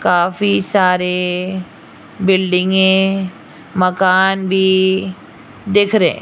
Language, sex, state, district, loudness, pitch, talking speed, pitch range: Hindi, female, Rajasthan, Jaipur, -15 LUFS, 190 Hz, 75 wpm, 185-190 Hz